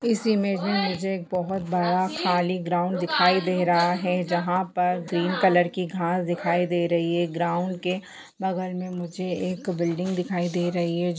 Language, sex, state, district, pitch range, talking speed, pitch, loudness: Hindi, female, Jharkhand, Jamtara, 175-185 Hz, 180 wpm, 180 Hz, -25 LUFS